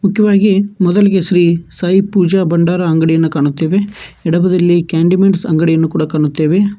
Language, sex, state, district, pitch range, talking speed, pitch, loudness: Kannada, male, Karnataka, Bangalore, 165-195 Hz, 115 wpm, 175 Hz, -12 LUFS